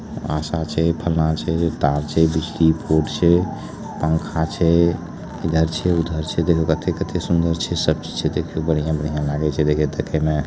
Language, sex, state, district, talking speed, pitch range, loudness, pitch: Maithili, male, Bihar, Supaul, 160 wpm, 80-85 Hz, -20 LUFS, 80 Hz